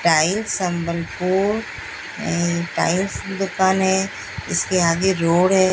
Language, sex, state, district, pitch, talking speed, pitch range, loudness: Hindi, female, Odisha, Sambalpur, 180 Hz, 115 wpm, 170-190 Hz, -20 LUFS